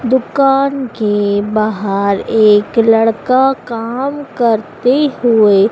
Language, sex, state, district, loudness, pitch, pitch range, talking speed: Hindi, female, Madhya Pradesh, Dhar, -13 LUFS, 230 Hz, 210-260 Hz, 85 wpm